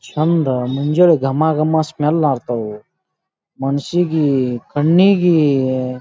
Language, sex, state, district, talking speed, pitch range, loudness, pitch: Kannada, male, Karnataka, Bijapur, 80 wpm, 130-165 Hz, -16 LUFS, 150 Hz